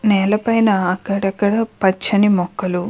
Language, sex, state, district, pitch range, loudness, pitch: Telugu, female, Andhra Pradesh, Krishna, 190-210 Hz, -17 LUFS, 200 Hz